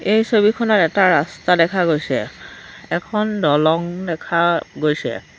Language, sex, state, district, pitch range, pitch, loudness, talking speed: Assamese, female, Assam, Sonitpur, 165-210 Hz, 175 Hz, -18 LUFS, 110 wpm